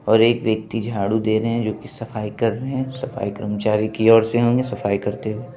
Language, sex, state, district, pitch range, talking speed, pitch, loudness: Hindi, male, Bihar, Begusarai, 105-120 Hz, 235 wpm, 110 Hz, -20 LUFS